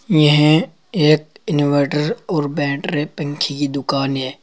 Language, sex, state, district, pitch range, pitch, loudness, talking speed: Hindi, male, Uttar Pradesh, Saharanpur, 145-155 Hz, 150 Hz, -18 LUFS, 120 wpm